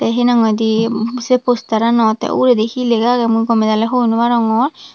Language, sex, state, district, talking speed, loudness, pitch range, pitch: Chakma, female, Tripura, Dhalai, 195 wpm, -14 LUFS, 225-245 Hz, 230 Hz